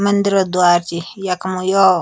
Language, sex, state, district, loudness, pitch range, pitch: Garhwali, male, Uttarakhand, Tehri Garhwal, -16 LUFS, 175-195 Hz, 185 Hz